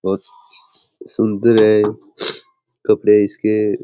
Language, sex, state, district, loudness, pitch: Rajasthani, male, Rajasthan, Churu, -16 LUFS, 120 Hz